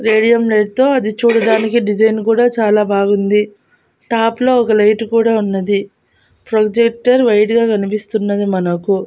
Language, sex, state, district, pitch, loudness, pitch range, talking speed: Telugu, female, Andhra Pradesh, Annamaya, 220 Hz, -14 LUFS, 210-230 Hz, 130 wpm